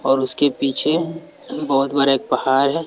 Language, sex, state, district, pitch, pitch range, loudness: Hindi, male, Bihar, West Champaran, 140 Hz, 135-150 Hz, -17 LUFS